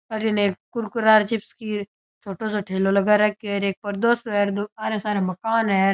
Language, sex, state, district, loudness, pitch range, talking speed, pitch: Rajasthani, male, Rajasthan, Churu, -22 LUFS, 200-220 Hz, 200 wpm, 210 Hz